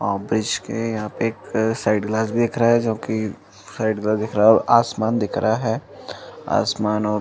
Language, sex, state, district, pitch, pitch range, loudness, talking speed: Hindi, male, Uttar Pradesh, Jalaun, 110 Hz, 105-115 Hz, -21 LUFS, 215 wpm